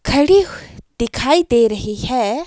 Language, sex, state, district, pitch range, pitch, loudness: Hindi, female, Himachal Pradesh, Shimla, 235-345 Hz, 280 Hz, -16 LUFS